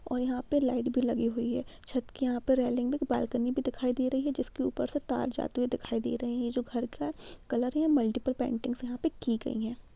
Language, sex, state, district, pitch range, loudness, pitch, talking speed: Hindi, female, Jharkhand, Jamtara, 245-265 Hz, -31 LUFS, 250 Hz, 245 wpm